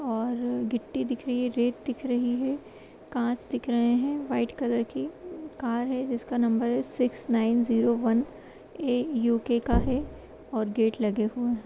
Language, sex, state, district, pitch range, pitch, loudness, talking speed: Kumaoni, female, Uttarakhand, Uttarkashi, 235-260 Hz, 245 Hz, -27 LUFS, 170 wpm